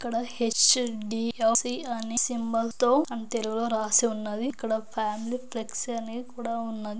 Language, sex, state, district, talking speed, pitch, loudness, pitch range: Telugu, female, Andhra Pradesh, Anantapur, 130 wpm, 230 Hz, -27 LUFS, 225-240 Hz